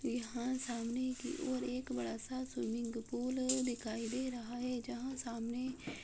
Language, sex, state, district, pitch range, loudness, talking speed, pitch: Hindi, female, Uttar Pradesh, Deoria, 235-255 Hz, -40 LUFS, 160 wpm, 250 Hz